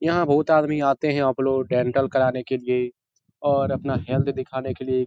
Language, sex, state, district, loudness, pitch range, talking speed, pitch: Hindi, male, Bihar, Jahanabad, -22 LUFS, 130-140 Hz, 175 wpm, 135 Hz